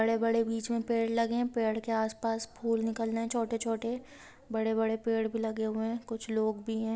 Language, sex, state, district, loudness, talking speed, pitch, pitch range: Hindi, female, Bihar, Gopalganj, -32 LUFS, 230 wpm, 225 Hz, 225-230 Hz